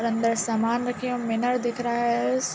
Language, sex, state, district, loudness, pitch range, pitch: Hindi, female, Uttar Pradesh, Jalaun, -25 LUFS, 230-245 Hz, 235 Hz